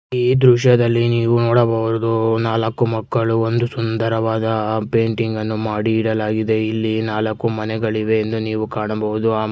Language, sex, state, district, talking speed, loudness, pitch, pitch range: Kannada, male, Karnataka, Mysore, 120 wpm, -18 LUFS, 110 Hz, 110-115 Hz